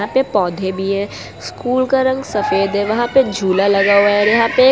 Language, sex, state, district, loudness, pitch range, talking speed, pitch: Hindi, female, Gujarat, Valsad, -15 LUFS, 200-255 Hz, 240 wpm, 205 Hz